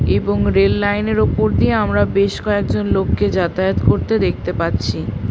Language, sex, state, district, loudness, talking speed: Bengali, female, West Bengal, Paschim Medinipur, -17 LUFS, 170 wpm